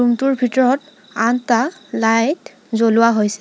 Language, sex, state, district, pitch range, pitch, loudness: Assamese, female, Assam, Sonitpur, 225-270 Hz, 245 Hz, -17 LUFS